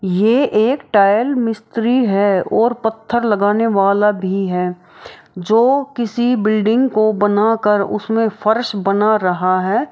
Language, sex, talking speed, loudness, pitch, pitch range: Maithili, female, 135 wpm, -15 LUFS, 215 Hz, 200-230 Hz